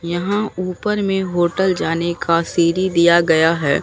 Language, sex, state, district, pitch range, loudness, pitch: Hindi, female, Bihar, Katihar, 170-190 Hz, -17 LUFS, 175 Hz